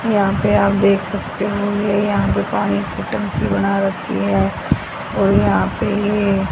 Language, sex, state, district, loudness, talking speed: Hindi, female, Haryana, Rohtak, -18 LUFS, 165 wpm